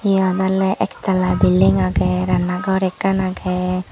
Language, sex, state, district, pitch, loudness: Chakma, female, Tripura, Dhalai, 185 Hz, -18 LUFS